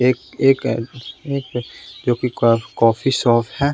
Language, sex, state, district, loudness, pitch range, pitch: Hindi, male, Bihar, West Champaran, -19 LUFS, 115-135 Hz, 125 Hz